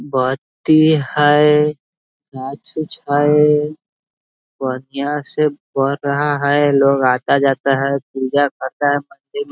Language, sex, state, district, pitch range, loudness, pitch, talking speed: Hindi, male, Bihar, East Champaran, 135-150 Hz, -16 LUFS, 145 Hz, 115 wpm